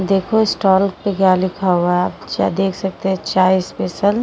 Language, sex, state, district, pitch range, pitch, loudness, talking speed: Hindi, female, Uttar Pradesh, Jyotiba Phule Nagar, 185-195 Hz, 190 Hz, -17 LUFS, 200 wpm